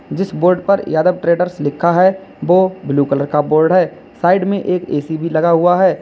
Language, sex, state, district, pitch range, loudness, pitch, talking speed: Hindi, male, Uttar Pradesh, Lalitpur, 160-185 Hz, -15 LUFS, 175 Hz, 210 wpm